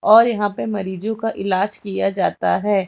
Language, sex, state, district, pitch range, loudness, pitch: Hindi, female, Chhattisgarh, Raipur, 190-220 Hz, -20 LUFS, 205 Hz